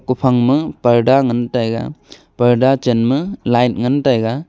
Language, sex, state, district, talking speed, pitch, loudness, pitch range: Wancho, male, Arunachal Pradesh, Longding, 120 wpm, 125 Hz, -15 LUFS, 120-135 Hz